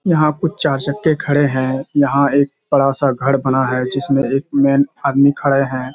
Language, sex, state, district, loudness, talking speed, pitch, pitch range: Hindi, male, Bihar, Kishanganj, -16 LUFS, 190 wpm, 140 Hz, 135-145 Hz